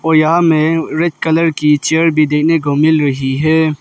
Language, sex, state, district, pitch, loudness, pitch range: Hindi, male, Arunachal Pradesh, Lower Dibang Valley, 160 Hz, -13 LUFS, 150-165 Hz